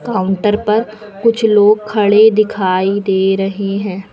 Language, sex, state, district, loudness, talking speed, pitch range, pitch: Hindi, female, Uttar Pradesh, Lucknow, -13 LUFS, 130 wpm, 195-215 Hz, 210 Hz